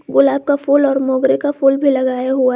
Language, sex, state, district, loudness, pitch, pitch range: Hindi, female, Jharkhand, Garhwa, -15 LUFS, 275 Hz, 260-280 Hz